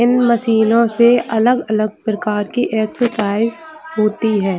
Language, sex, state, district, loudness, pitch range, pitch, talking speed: Hindi, female, Chhattisgarh, Bilaspur, -16 LUFS, 215-240 Hz, 225 Hz, 130 wpm